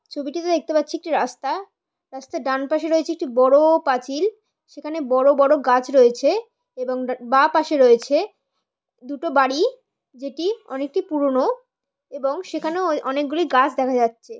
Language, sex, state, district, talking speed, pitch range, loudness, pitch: Bengali, female, West Bengal, Paschim Medinipur, 140 wpm, 265-340 Hz, -20 LUFS, 295 Hz